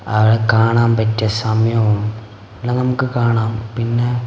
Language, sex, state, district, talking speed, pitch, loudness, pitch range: Malayalam, male, Kerala, Kasaragod, 110 wpm, 110 Hz, -16 LUFS, 110-120 Hz